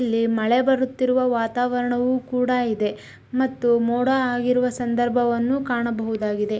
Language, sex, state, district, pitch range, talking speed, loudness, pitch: Kannada, female, Karnataka, Shimoga, 235-250 Hz, 110 wpm, -22 LUFS, 245 Hz